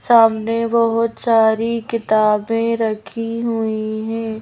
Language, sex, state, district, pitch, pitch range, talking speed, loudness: Hindi, female, Madhya Pradesh, Bhopal, 225 Hz, 220-230 Hz, 95 wpm, -18 LUFS